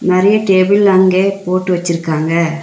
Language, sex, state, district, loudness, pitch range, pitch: Tamil, female, Tamil Nadu, Nilgiris, -12 LUFS, 170-195 Hz, 185 Hz